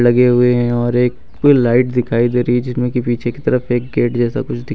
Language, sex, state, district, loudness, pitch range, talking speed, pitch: Hindi, male, Uttar Pradesh, Lucknow, -15 LUFS, 120-125 Hz, 240 wpm, 125 Hz